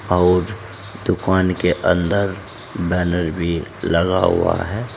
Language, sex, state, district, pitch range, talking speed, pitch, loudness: Hindi, male, Uttar Pradesh, Saharanpur, 85-100 Hz, 110 wpm, 90 Hz, -19 LUFS